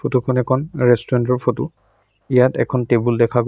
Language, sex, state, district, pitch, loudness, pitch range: Assamese, male, Assam, Sonitpur, 125 Hz, -18 LUFS, 120-125 Hz